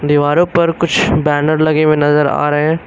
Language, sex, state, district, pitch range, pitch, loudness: Hindi, male, Uttar Pradesh, Lucknow, 145-160 Hz, 155 Hz, -13 LUFS